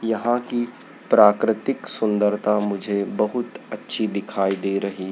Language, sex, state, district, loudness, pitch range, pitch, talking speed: Hindi, male, Madhya Pradesh, Dhar, -22 LUFS, 100-115 Hz, 105 Hz, 115 wpm